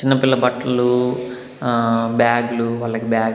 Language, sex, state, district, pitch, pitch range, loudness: Telugu, male, Andhra Pradesh, Annamaya, 120 Hz, 115-125 Hz, -18 LUFS